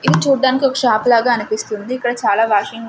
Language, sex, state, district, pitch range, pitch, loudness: Telugu, female, Andhra Pradesh, Sri Satya Sai, 220-255 Hz, 240 Hz, -16 LUFS